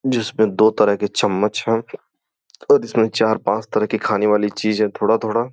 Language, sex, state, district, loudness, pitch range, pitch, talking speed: Hindi, male, Uttar Pradesh, Gorakhpur, -18 LUFS, 105-115 Hz, 110 Hz, 185 wpm